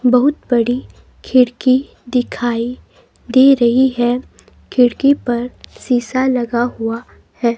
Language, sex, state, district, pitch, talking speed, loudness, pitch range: Hindi, female, Himachal Pradesh, Shimla, 245 Hz, 105 wpm, -16 LUFS, 240-255 Hz